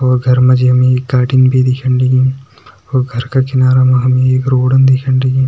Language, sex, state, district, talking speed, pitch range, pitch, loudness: Hindi, male, Uttarakhand, Tehri Garhwal, 220 wpm, 125-130 Hz, 130 Hz, -11 LUFS